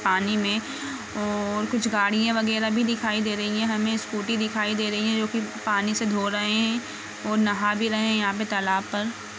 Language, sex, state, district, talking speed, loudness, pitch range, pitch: Hindi, female, Jharkhand, Jamtara, 210 wpm, -25 LUFS, 205-220 Hz, 215 Hz